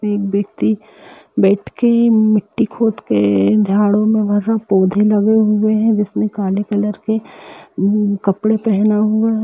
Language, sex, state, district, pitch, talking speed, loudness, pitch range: Hindi, male, Uttar Pradesh, Budaun, 210 Hz, 160 wpm, -15 LUFS, 200-220 Hz